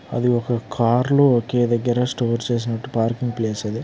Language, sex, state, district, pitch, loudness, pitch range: Telugu, male, Andhra Pradesh, Srikakulam, 120 Hz, -20 LUFS, 115-125 Hz